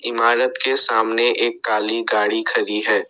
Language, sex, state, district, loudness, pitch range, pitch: Hindi, male, Assam, Sonitpur, -16 LUFS, 110-120 Hz, 115 Hz